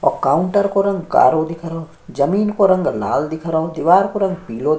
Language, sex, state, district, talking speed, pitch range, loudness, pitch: Hindi, male, Uttarakhand, Tehri Garhwal, 225 wpm, 160-195 Hz, -17 LUFS, 180 Hz